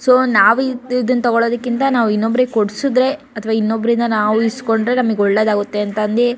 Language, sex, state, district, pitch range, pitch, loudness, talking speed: Kannada, female, Karnataka, Shimoga, 215-250 Hz, 235 Hz, -16 LUFS, 140 wpm